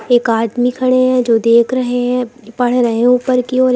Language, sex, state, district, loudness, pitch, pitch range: Hindi, female, Uttar Pradesh, Lucknow, -14 LUFS, 245 Hz, 235-255 Hz